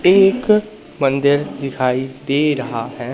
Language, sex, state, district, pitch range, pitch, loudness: Hindi, male, Madhya Pradesh, Katni, 130-180 Hz, 140 Hz, -17 LUFS